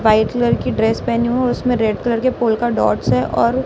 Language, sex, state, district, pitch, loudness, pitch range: Hindi, female, Chhattisgarh, Raipur, 235 Hz, -17 LUFS, 220-245 Hz